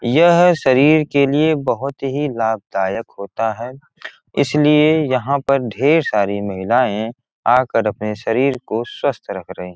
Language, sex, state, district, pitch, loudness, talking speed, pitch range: Hindi, male, Bihar, Gopalganj, 130 Hz, -17 LUFS, 140 wpm, 110-145 Hz